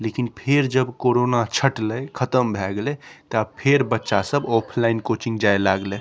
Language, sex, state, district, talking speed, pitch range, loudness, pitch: Maithili, male, Bihar, Saharsa, 160 wpm, 110-130 Hz, -21 LUFS, 115 Hz